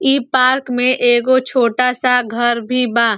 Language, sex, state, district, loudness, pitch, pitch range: Bhojpuri, female, Uttar Pradesh, Ghazipur, -14 LUFS, 250 Hz, 240-255 Hz